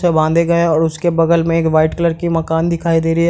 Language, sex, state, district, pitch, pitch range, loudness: Hindi, male, Bihar, Madhepura, 165 Hz, 160-170 Hz, -15 LUFS